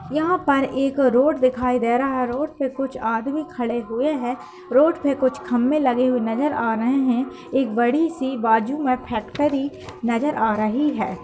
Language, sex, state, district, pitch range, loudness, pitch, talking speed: Hindi, female, Uttar Pradesh, Hamirpur, 240-285 Hz, -21 LUFS, 260 Hz, 180 wpm